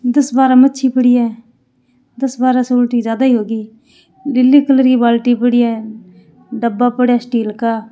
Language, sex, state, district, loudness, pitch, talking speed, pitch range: Hindi, female, Rajasthan, Churu, -13 LUFS, 245 Hz, 175 wpm, 225-255 Hz